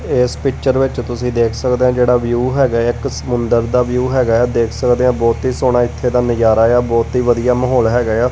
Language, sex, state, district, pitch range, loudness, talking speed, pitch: Punjabi, male, Punjab, Kapurthala, 120-125 Hz, -15 LUFS, 250 wpm, 125 Hz